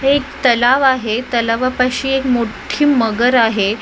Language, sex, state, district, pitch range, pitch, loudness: Marathi, female, Maharashtra, Mumbai Suburban, 230-265 Hz, 245 Hz, -15 LUFS